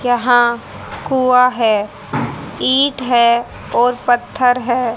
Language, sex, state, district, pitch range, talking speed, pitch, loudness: Hindi, female, Haryana, Rohtak, 235-250 Hz, 95 wpm, 245 Hz, -15 LUFS